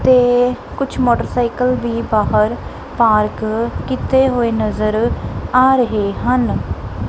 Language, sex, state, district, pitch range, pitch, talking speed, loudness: Punjabi, male, Punjab, Kapurthala, 215-250 Hz, 235 Hz, 100 wpm, -16 LUFS